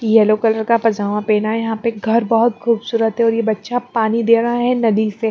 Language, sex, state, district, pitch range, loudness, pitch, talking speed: Hindi, female, Bihar, Patna, 220-230 Hz, -16 LUFS, 225 Hz, 235 wpm